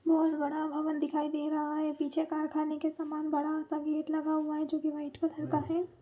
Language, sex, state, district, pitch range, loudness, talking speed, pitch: Hindi, female, Chhattisgarh, Raigarh, 305-315 Hz, -33 LUFS, 230 wpm, 310 Hz